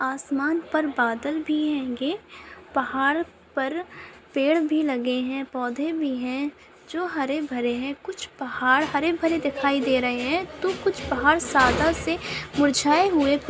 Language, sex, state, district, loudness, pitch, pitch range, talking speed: Hindi, female, Andhra Pradesh, Chittoor, -24 LUFS, 290 Hz, 265-315 Hz, 145 wpm